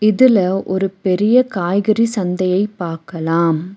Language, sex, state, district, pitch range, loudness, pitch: Tamil, female, Tamil Nadu, Nilgiris, 175-210 Hz, -16 LUFS, 190 Hz